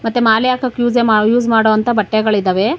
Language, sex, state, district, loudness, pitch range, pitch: Kannada, female, Karnataka, Bangalore, -14 LUFS, 215-240 Hz, 225 Hz